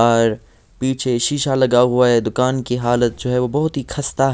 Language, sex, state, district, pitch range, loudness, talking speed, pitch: Hindi, male, Bihar, Patna, 120-130 Hz, -18 LUFS, 195 wpm, 125 Hz